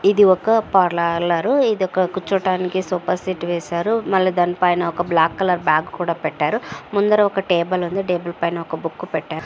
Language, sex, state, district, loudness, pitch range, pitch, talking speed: Telugu, female, Andhra Pradesh, Chittoor, -19 LUFS, 170-190 Hz, 180 Hz, 150 wpm